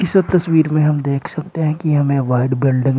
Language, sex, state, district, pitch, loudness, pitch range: Hindi, male, Uttar Pradesh, Shamli, 150 Hz, -16 LUFS, 135-160 Hz